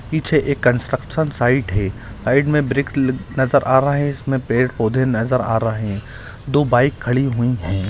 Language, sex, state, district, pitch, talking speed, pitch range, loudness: Hindi, male, Bihar, Gaya, 130 Hz, 175 wpm, 115-140 Hz, -18 LUFS